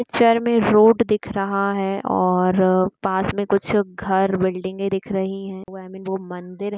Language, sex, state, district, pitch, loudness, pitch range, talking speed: Hindi, female, Bihar, East Champaran, 195 Hz, -20 LUFS, 190-205 Hz, 150 wpm